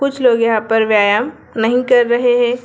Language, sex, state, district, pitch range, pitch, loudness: Hindi, female, Bihar, Sitamarhi, 225-250 Hz, 240 Hz, -14 LUFS